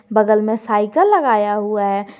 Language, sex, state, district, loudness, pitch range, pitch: Hindi, male, Jharkhand, Garhwa, -16 LUFS, 205-220 Hz, 215 Hz